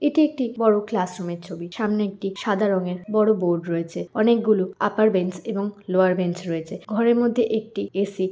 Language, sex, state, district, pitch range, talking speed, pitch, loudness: Bengali, female, West Bengal, Kolkata, 185-220 Hz, 185 wpm, 205 Hz, -23 LUFS